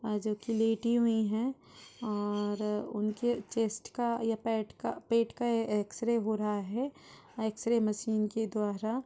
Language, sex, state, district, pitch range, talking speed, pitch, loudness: Hindi, female, Uttar Pradesh, Budaun, 210-230 Hz, 145 wpm, 220 Hz, -32 LUFS